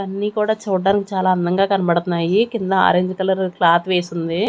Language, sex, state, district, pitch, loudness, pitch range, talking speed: Telugu, female, Andhra Pradesh, Manyam, 190 Hz, -18 LUFS, 175-195 Hz, 160 wpm